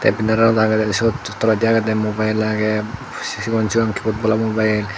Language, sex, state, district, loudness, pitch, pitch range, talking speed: Chakma, male, Tripura, Dhalai, -18 LUFS, 110 Hz, 110-115 Hz, 170 wpm